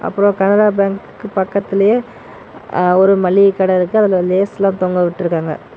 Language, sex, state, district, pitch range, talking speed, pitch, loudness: Tamil, male, Tamil Nadu, Namakkal, 185-200 Hz, 115 wpm, 195 Hz, -14 LUFS